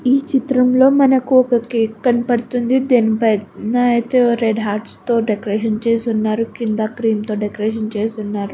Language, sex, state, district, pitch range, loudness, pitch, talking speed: Telugu, female, Andhra Pradesh, Guntur, 215-245 Hz, -17 LUFS, 230 Hz, 160 wpm